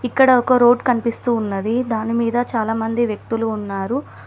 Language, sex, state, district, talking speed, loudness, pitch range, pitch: Telugu, female, Telangana, Mahabubabad, 155 wpm, -18 LUFS, 225-245 Hz, 235 Hz